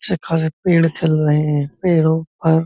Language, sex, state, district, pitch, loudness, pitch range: Hindi, male, Uttar Pradesh, Muzaffarnagar, 160 Hz, -17 LUFS, 155-165 Hz